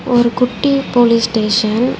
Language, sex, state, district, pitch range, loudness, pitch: Tamil, female, Tamil Nadu, Chennai, 225-250 Hz, -14 LUFS, 240 Hz